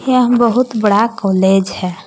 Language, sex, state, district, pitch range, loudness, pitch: Hindi, female, Jharkhand, Palamu, 190-240 Hz, -13 LUFS, 220 Hz